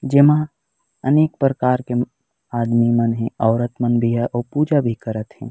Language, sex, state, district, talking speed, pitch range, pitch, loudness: Chhattisgarhi, male, Chhattisgarh, Raigarh, 185 wpm, 115-140 Hz, 120 Hz, -19 LUFS